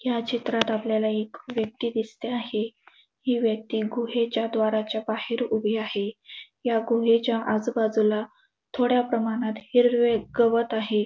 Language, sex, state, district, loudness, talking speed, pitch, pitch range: Marathi, female, Maharashtra, Dhule, -25 LUFS, 120 wpm, 225 Hz, 220-240 Hz